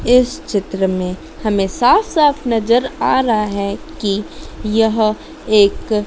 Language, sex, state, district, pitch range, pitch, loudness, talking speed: Hindi, female, Madhya Pradesh, Dhar, 200-240 Hz, 215 Hz, -16 LUFS, 130 wpm